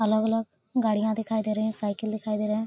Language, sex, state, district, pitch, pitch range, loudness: Hindi, female, Bihar, Araria, 220 Hz, 215-220 Hz, -27 LUFS